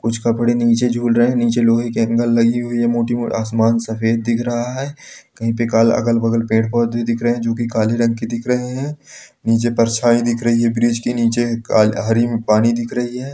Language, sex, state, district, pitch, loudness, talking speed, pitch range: Hindi, male, Bihar, Samastipur, 115 Hz, -17 LUFS, 230 wpm, 115-120 Hz